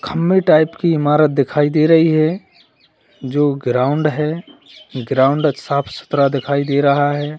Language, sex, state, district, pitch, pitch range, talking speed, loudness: Hindi, male, Uttar Pradesh, Lalitpur, 145 Hz, 140-155 Hz, 145 wpm, -16 LUFS